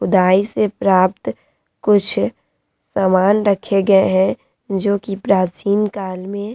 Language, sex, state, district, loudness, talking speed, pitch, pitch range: Hindi, female, Bihar, Vaishali, -17 LUFS, 130 wpm, 195 Hz, 190-205 Hz